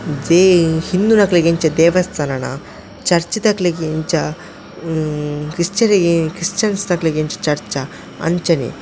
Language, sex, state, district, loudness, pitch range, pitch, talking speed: Tulu, male, Karnataka, Dakshina Kannada, -16 LUFS, 155-180 Hz, 165 Hz, 95 wpm